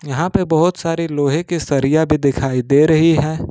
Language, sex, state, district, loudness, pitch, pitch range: Hindi, male, Jharkhand, Ranchi, -16 LUFS, 155 Hz, 140-165 Hz